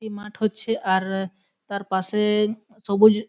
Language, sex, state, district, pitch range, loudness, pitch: Bengali, male, West Bengal, Malda, 195-215 Hz, -23 LUFS, 210 Hz